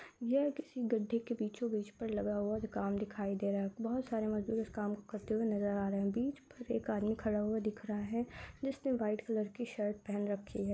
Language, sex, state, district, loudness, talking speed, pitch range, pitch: Hindi, male, Uttar Pradesh, Hamirpur, -37 LUFS, 235 wpm, 205-235 Hz, 215 Hz